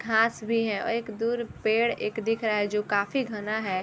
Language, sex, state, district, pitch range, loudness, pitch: Hindi, female, Bihar, Sitamarhi, 210-230 Hz, -27 LUFS, 220 Hz